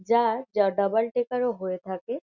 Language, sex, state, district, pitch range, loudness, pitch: Bengali, female, West Bengal, Kolkata, 195-240 Hz, -26 LUFS, 225 Hz